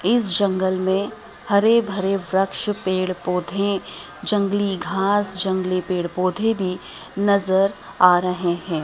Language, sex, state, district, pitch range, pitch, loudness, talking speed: Hindi, female, Madhya Pradesh, Dhar, 180-200 Hz, 190 Hz, -20 LUFS, 120 wpm